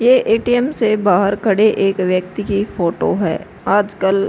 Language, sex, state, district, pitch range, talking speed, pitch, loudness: Hindi, female, Uttar Pradesh, Hamirpur, 195-220 Hz, 165 wpm, 205 Hz, -16 LUFS